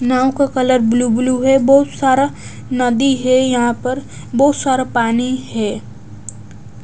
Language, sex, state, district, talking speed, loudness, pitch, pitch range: Hindi, female, Odisha, Nuapada, 140 wpm, -15 LUFS, 255 Hz, 235-265 Hz